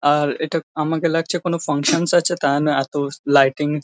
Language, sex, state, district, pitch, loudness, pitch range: Bengali, male, West Bengal, Kolkata, 150 Hz, -19 LUFS, 145-165 Hz